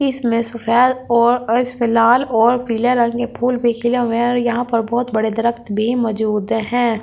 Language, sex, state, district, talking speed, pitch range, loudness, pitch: Hindi, female, Delhi, New Delhi, 195 wpm, 230-245 Hz, -16 LUFS, 235 Hz